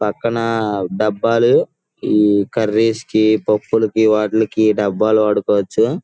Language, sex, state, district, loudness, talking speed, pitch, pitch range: Telugu, male, Andhra Pradesh, Guntur, -16 LUFS, 100 wpm, 110 Hz, 105-110 Hz